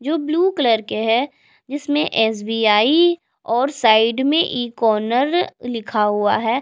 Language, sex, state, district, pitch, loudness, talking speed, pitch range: Hindi, female, Bihar, Patna, 240 Hz, -18 LUFS, 135 wpm, 220-295 Hz